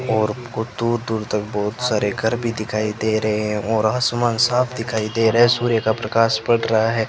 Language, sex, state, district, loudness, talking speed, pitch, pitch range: Hindi, male, Rajasthan, Bikaner, -20 LUFS, 230 wpm, 110 Hz, 110-115 Hz